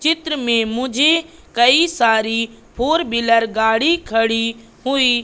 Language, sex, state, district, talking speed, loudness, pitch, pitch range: Hindi, female, Madhya Pradesh, Katni, 115 wpm, -16 LUFS, 240 Hz, 225-300 Hz